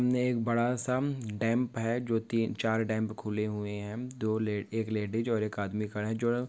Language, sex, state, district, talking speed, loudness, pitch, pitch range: Hindi, male, Maharashtra, Nagpur, 215 wpm, -32 LUFS, 115 Hz, 105-120 Hz